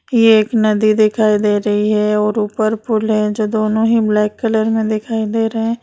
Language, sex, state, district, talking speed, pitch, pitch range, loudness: Hindi, female, Bihar, Madhepura, 215 wpm, 215 Hz, 210-225 Hz, -15 LUFS